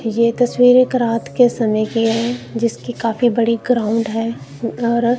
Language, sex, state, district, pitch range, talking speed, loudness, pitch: Hindi, female, Punjab, Kapurthala, 225-245 Hz, 160 wpm, -17 LUFS, 235 Hz